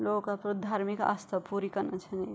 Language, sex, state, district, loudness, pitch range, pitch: Garhwali, female, Uttarakhand, Tehri Garhwal, -33 LUFS, 190-205 Hz, 200 Hz